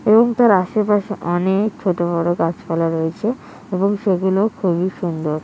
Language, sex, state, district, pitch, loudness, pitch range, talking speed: Bengali, female, West Bengal, Kolkata, 190 Hz, -18 LUFS, 170-210 Hz, 145 wpm